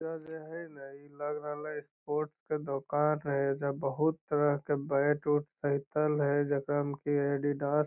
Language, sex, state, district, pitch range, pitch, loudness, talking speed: Magahi, male, Bihar, Lakhisarai, 140-150 Hz, 145 Hz, -32 LUFS, 185 wpm